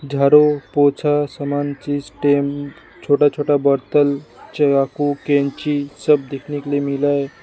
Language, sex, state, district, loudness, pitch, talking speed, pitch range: Hindi, male, Assam, Sonitpur, -18 LUFS, 145 Hz, 130 wpm, 140-145 Hz